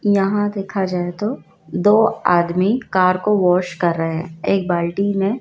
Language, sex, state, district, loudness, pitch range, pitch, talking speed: Hindi, female, Madhya Pradesh, Dhar, -18 LUFS, 175-205 Hz, 190 Hz, 165 wpm